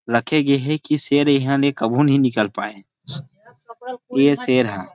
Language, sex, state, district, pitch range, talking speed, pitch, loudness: Chhattisgarhi, male, Chhattisgarh, Rajnandgaon, 125-150 Hz, 170 wpm, 140 Hz, -18 LUFS